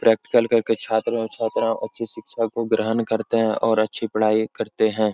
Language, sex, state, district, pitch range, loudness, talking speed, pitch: Hindi, male, Uttar Pradesh, Etah, 110-115 Hz, -22 LUFS, 185 wpm, 110 Hz